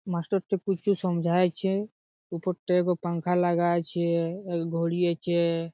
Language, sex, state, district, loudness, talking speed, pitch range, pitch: Bengali, male, West Bengal, Jhargram, -27 LUFS, 115 wpm, 170-185 Hz, 175 Hz